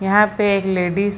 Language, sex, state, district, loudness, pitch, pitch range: Hindi, female, Bihar, Purnia, -17 LUFS, 200 Hz, 190-205 Hz